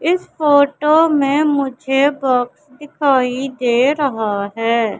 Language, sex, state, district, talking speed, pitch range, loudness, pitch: Hindi, female, Madhya Pradesh, Katni, 110 wpm, 250-295 Hz, -16 LUFS, 275 Hz